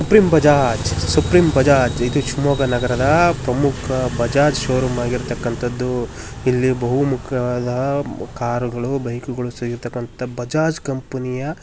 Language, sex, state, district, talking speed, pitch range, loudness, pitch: Kannada, male, Karnataka, Shimoga, 110 wpm, 120-140 Hz, -19 LUFS, 125 Hz